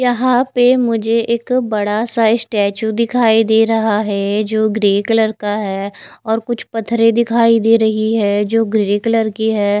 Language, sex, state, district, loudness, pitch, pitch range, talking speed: Hindi, female, Bihar, West Champaran, -15 LUFS, 225 Hz, 210-230 Hz, 170 wpm